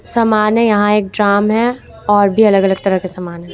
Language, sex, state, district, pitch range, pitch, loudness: Hindi, female, Jharkhand, Ranchi, 195-215 Hz, 205 Hz, -13 LUFS